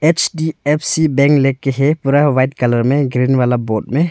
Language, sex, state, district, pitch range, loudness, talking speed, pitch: Hindi, male, Arunachal Pradesh, Longding, 130-155 Hz, -15 LUFS, 190 wpm, 140 Hz